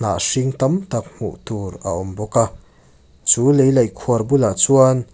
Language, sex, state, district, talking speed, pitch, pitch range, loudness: Mizo, male, Mizoram, Aizawl, 185 wpm, 115 Hz, 95-130 Hz, -17 LUFS